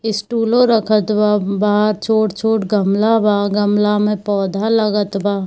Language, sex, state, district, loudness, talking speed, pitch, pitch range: Hindi, female, Bihar, Darbhanga, -16 LUFS, 130 wpm, 210 Hz, 205-220 Hz